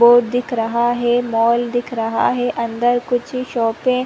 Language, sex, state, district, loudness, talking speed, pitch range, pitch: Hindi, female, Chhattisgarh, Rajnandgaon, -18 LUFS, 180 wpm, 230-245 Hz, 240 Hz